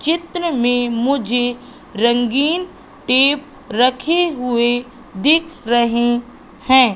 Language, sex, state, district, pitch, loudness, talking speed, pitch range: Hindi, female, Madhya Pradesh, Katni, 255 Hz, -17 LUFS, 85 wpm, 240-290 Hz